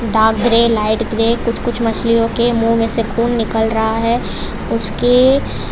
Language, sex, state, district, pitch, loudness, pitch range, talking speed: Hindi, female, Gujarat, Valsad, 230 Hz, -15 LUFS, 225-235 Hz, 180 wpm